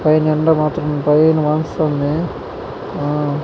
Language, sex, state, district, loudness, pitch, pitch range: Telugu, male, Andhra Pradesh, Chittoor, -16 LUFS, 155 Hz, 145-155 Hz